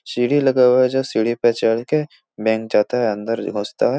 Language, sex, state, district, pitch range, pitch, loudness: Hindi, male, Bihar, Jahanabad, 110-130 Hz, 120 Hz, -18 LUFS